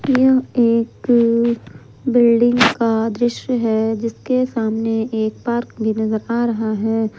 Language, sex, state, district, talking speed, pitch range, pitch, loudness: Hindi, female, Jharkhand, Ranchi, 125 wpm, 225-240 Hz, 230 Hz, -18 LUFS